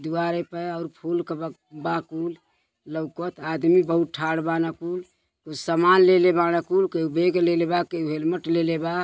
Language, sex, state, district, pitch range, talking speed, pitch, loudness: Bhojpuri, female, Uttar Pradesh, Deoria, 165-175 Hz, 180 wpm, 170 Hz, -23 LUFS